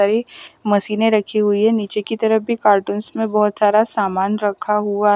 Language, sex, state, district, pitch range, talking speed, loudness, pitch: Hindi, female, Bihar, West Champaran, 205-220 Hz, 185 wpm, -18 LUFS, 210 Hz